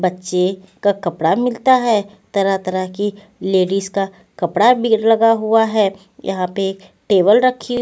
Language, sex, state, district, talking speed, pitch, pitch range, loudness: Hindi, female, Punjab, Pathankot, 140 wpm, 195 Hz, 185-225 Hz, -17 LUFS